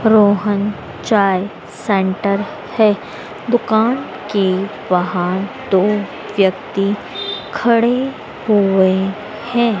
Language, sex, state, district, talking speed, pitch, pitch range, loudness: Hindi, female, Madhya Pradesh, Dhar, 75 wpm, 205 Hz, 190-220 Hz, -17 LUFS